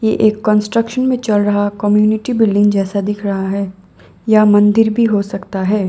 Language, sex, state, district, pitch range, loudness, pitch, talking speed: Hindi, female, Assam, Sonitpur, 200-220 Hz, -14 LUFS, 210 Hz, 175 wpm